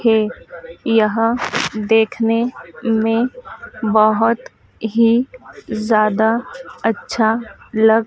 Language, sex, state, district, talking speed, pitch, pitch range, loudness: Hindi, female, Madhya Pradesh, Dhar, 65 wpm, 225 Hz, 220-245 Hz, -17 LUFS